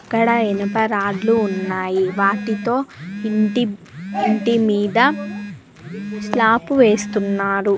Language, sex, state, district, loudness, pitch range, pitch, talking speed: Telugu, female, Telangana, Mahabubabad, -18 LUFS, 195-225 Hz, 205 Hz, 70 wpm